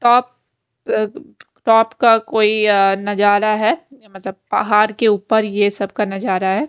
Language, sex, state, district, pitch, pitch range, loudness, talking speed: Hindi, female, Haryana, Rohtak, 215 Hz, 205-225 Hz, -16 LUFS, 135 wpm